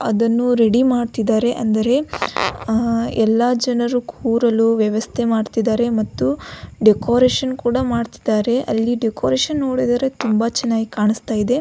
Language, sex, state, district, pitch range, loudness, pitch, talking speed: Kannada, female, Karnataka, Belgaum, 225-245 Hz, -18 LUFS, 230 Hz, 115 wpm